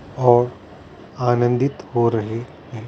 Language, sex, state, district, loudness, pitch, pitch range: Hindi, male, Maharashtra, Mumbai Suburban, -20 LUFS, 120 Hz, 115-125 Hz